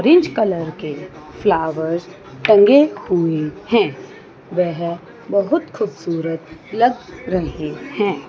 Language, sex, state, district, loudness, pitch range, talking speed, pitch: Hindi, female, Chandigarh, Chandigarh, -18 LUFS, 160-215 Hz, 85 wpm, 180 Hz